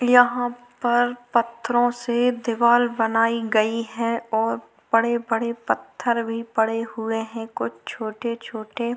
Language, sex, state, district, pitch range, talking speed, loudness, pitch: Hindi, female, Maharashtra, Chandrapur, 225-240 Hz, 135 wpm, -23 LUFS, 230 Hz